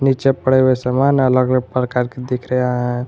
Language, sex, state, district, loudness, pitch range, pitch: Hindi, male, Jharkhand, Garhwa, -17 LUFS, 125-130 Hz, 125 Hz